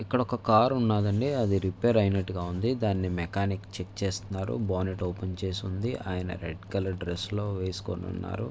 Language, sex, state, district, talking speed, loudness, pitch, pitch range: Telugu, male, Andhra Pradesh, Visakhapatnam, 155 wpm, -29 LUFS, 95 Hz, 90-110 Hz